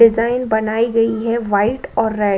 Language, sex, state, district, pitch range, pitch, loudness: Hindi, female, Uttar Pradesh, Budaun, 220-230 Hz, 225 Hz, -17 LUFS